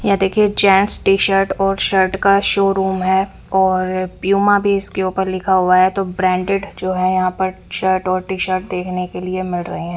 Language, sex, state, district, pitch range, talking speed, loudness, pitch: Hindi, female, Punjab, Fazilka, 185-195 Hz, 190 wpm, -16 LUFS, 190 Hz